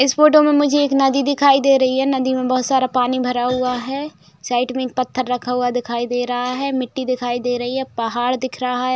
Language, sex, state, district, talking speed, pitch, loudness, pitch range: Hindi, female, Chhattisgarh, Raigarh, 250 wpm, 255 Hz, -18 LUFS, 245-270 Hz